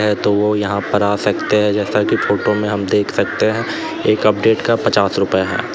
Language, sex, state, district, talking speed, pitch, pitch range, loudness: Hindi, male, Uttar Pradesh, Lalitpur, 220 wpm, 105 Hz, 100-105 Hz, -16 LUFS